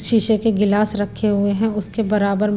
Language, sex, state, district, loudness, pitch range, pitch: Hindi, female, Punjab, Pathankot, -17 LUFS, 205-220 Hz, 210 Hz